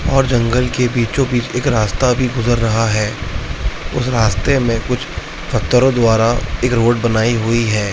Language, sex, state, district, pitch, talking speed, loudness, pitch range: Hindi, male, Uttar Pradesh, Etah, 120 Hz, 165 wpm, -16 LUFS, 110-125 Hz